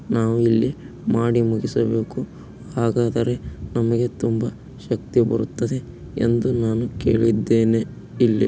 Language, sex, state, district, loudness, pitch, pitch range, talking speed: Kannada, male, Karnataka, Mysore, -21 LUFS, 115 Hz, 115-120 Hz, 90 wpm